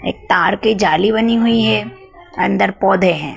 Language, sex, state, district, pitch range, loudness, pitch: Hindi, female, Madhya Pradesh, Dhar, 195-230 Hz, -14 LUFS, 220 Hz